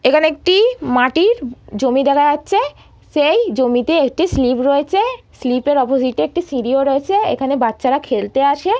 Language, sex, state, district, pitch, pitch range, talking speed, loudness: Bengali, female, West Bengal, Purulia, 280 Hz, 255-350 Hz, 145 wpm, -16 LUFS